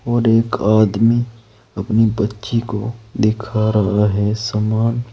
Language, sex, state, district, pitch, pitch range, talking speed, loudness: Hindi, male, Uttar Pradesh, Saharanpur, 110 Hz, 105-115 Hz, 115 wpm, -17 LUFS